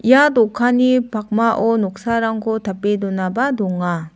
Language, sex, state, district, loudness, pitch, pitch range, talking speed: Garo, female, Meghalaya, South Garo Hills, -17 LUFS, 220 Hz, 200-240 Hz, 100 wpm